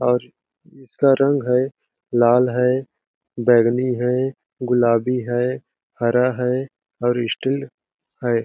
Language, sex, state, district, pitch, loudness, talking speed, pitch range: Hindi, male, Chhattisgarh, Balrampur, 125 Hz, -20 LUFS, 100 wpm, 120-130 Hz